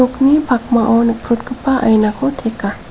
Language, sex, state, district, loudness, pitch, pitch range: Garo, female, Meghalaya, South Garo Hills, -15 LUFS, 240 Hz, 225-265 Hz